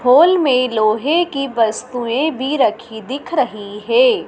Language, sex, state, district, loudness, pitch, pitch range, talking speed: Hindi, female, Madhya Pradesh, Dhar, -16 LUFS, 255 Hz, 225-300 Hz, 155 wpm